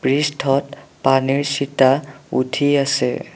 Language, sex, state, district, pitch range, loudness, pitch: Assamese, male, Assam, Sonitpur, 130-140 Hz, -18 LUFS, 135 Hz